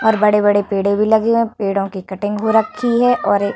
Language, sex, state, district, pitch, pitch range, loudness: Hindi, female, Uttar Pradesh, Varanasi, 210 Hz, 200-220 Hz, -16 LUFS